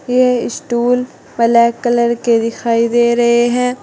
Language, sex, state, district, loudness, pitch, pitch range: Hindi, female, Uttar Pradesh, Saharanpur, -14 LUFS, 240 Hz, 235-245 Hz